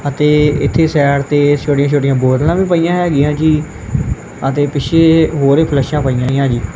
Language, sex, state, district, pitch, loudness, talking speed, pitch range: Punjabi, male, Punjab, Kapurthala, 145 Hz, -13 LUFS, 170 wpm, 140-155 Hz